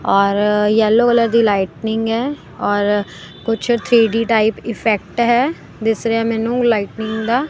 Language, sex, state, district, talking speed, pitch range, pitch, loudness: Punjabi, female, Punjab, Kapurthala, 150 wpm, 210-235 Hz, 225 Hz, -16 LUFS